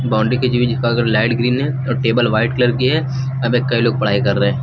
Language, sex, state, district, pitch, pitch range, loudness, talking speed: Hindi, male, Uttar Pradesh, Lucknow, 120 Hz, 115-130 Hz, -16 LUFS, 260 wpm